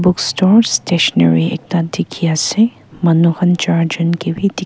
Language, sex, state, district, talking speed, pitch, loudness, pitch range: Nagamese, female, Nagaland, Kohima, 165 wpm, 170 Hz, -14 LUFS, 165-180 Hz